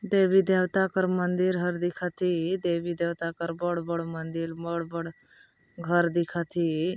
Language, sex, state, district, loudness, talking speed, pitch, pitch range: Chhattisgarhi, female, Chhattisgarh, Balrampur, -27 LUFS, 140 wpm, 175 Hz, 170-180 Hz